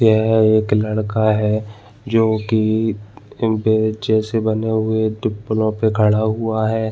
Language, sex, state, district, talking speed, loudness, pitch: Hindi, male, Chhattisgarh, Balrampur, 140 wpm, -18 LUFS, 110 Hz